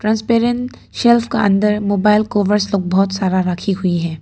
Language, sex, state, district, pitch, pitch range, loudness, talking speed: Hindi, female, Arunachal Pradesh, Papum Pare, 205 Hz, 190-220 Hz, -16 LUFS, 170 wpm